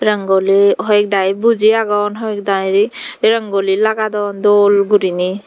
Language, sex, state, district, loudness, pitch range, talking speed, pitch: Chakma, female, Tripura, Dhalai, -14 LUFS, 195-215 Hz, 100 wpm, 205 Hz